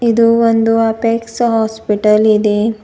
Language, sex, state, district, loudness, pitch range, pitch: Kannada, female, Karnataka, Bidar, -13 LUFS, 215-230 Hz, 225 Hz